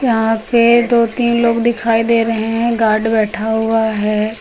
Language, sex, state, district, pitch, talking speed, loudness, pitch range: Hindi, female, Uttar Pradesh, Lucknow, 225 Hz, 175 wpm, -14 LUFS, 220-235 Hz